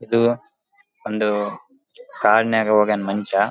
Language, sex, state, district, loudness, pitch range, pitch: Kannada, male, Karnataka, Raichur, -20 LUFS, 105-155 Hz, 110 Hz